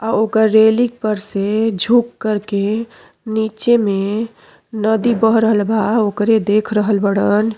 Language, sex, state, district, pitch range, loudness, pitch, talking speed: Bhojpuri, female, Uttar Pradesh, Deoria, 210-225 Hz, -16 LUFS, 220 Hz, 150 wpm